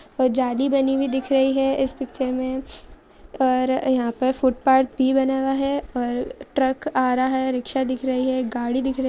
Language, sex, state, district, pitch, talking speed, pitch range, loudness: Hindi, female, Andhra Pradesh, Visakhapatnam, 260 Hz, 190 wpm, 255-270 Hz, -22 LUFS